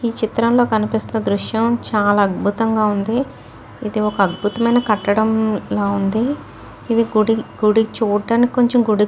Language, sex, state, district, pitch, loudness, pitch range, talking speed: Telugu, female, Telangana, Nalgonda, 220 Hz, -17 LUFS, 210-230 Hz, 125 wpm